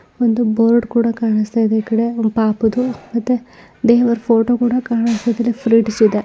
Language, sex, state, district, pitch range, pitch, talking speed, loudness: Kannada, female, Karnataka, Belgaum, 225-235 Hz, 230 Hz, 145 wpm, -16 LUFS